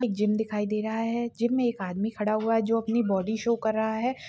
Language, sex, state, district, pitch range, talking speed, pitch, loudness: Kumaoni, female, Uttarakhand, Uttarkashi, 215-235 Hz, 280 wpm, 220 Hz, -27 LUFS